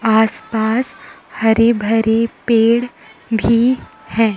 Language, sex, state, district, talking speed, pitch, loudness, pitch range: Hindi, female, Chhattisgarh, Raipur, 95 wpm, 225 Hz, -16 LUFS, 220-235 Hz